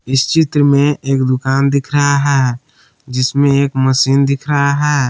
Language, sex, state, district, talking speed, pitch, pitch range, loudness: Hindi, male, Jharkhand, Palamu, 165 wpm, 140 Hz, 130-145 Hz, -13 LUFS